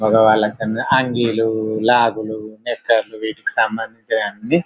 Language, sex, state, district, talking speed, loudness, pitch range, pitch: Telugu, male, Telangana, Karimnagar, 105 wpm, -18 LUFS, 110-120 Hz, 110 Hz